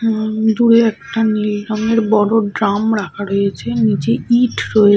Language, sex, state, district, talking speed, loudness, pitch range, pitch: Bengali, female, West Bengal, Purulia, 145 wpm, -15 LUFS, 205-225 Hz, 215 Hz